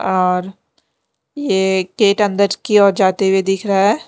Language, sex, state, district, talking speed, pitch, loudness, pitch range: Hindi, female, Delhi, New Delhi, 160 wpm, 195 Hz, -15 LUFS, 190-205 Hz